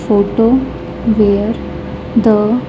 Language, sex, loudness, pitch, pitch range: English, female, -14 LUFS, 220 Hz, 210-230 Hz